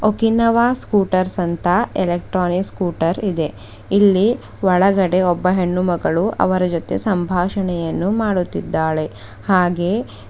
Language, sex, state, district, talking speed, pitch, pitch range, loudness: Kannada, female, Karnataka, Bidar, 85 wpm, 185 Hz, 175-200 Hz, -17 LUFS